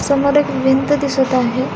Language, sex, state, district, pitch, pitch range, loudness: Marathi, female, Maharashtra, Pune, 270 Hz, 260-280 Hz, -15 LUFS